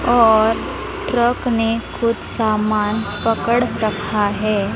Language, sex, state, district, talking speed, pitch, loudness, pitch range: Hindi, female, Maharashtra, Gondia, 100 wpm, 225 Hz, -18 LUFS, 210-230 Hz